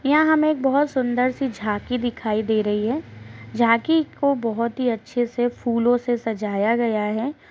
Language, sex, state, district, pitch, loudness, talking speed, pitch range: Hindi, female, Uttar Pradesh, Deoria, 240 Hz, -22 LUFS, 175 wpm, 220-265 Hz